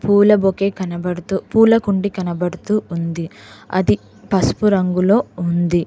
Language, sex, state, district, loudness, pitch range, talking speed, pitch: Telugu, female, Telangana, Mahabubabad, -17 LUFS, 175-205 Hz, 100 wpm, 190 Hz